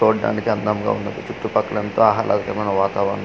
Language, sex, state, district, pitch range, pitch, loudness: Telugu, male, Andhra Pradesh, Manyam, 100-105 Hz, 105 Hz, -20 LUFS